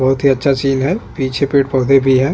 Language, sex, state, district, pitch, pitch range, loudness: Hindi, male, Chhattisgarh, Bastar, 135 Hz, 130-140 Hz, -14 LUFS